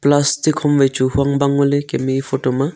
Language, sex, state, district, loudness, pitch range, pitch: Wancho, male, Arunachal Pradesh, Longding, -17 LUFS, 135-145 Hz, 140 Hz